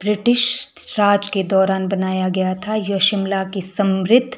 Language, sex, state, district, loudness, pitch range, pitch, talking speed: Hindi, male, Himachal Pradesh, Shimla, -18 LUFS, 190-215 Hz, 200 Hz, 150 wpm